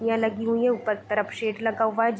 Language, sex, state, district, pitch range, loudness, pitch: Hindi, female, Bihar, Gopalganj, 215-230 Hz, -25 LUFS, 225 Hz